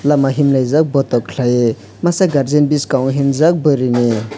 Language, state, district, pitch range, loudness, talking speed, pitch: Kokborok, Tripura, West Tripura, 125-150 Hz, -14 LUFS, 125 wpm, 140 Hz